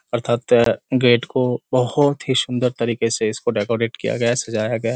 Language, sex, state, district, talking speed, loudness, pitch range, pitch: Hindi, male, Bihar, Kishanganj, 180 wpm, -19 LUFS, 115-125 Hz, 120 Hz